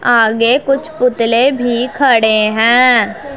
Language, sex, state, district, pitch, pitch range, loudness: Hindi, female, Punjab, Pathankot, 245 Hz, 230-270 Hz, -11 LUFS